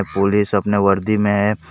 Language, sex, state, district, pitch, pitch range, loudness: Hindi, male, Jharkhand, Deoghar, 100 Hz, 100-105 Hz, -17 LUFS